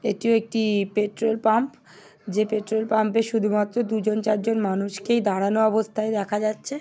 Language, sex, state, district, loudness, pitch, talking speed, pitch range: Bengali, female, West Bengal, Paschim Medinipur, -23 LUFS, 215 Hz, 130 wpm, 210-225 Hz